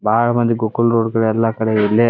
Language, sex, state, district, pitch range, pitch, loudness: Kannada, male, Karnataka, Dharwad, 110-115 Hz, 115 Hz, -16 LUFS